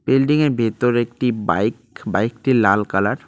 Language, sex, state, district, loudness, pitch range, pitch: Bengali, male, West Bengal, Cooch Behar, -19 LUFS, 110-130 Hz, 120 Hz